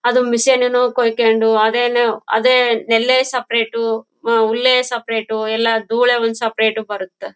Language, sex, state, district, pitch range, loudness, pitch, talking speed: Kannada, female, Karnataka, Bellary, 225-245 Hz, -16 LUFS, 230 Hz, 120 wpm